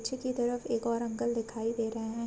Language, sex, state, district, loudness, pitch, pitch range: Hindi, female, Uttar Pradesh, Varanasi, -33 LUFS, 230 Hz, 225-240 Hz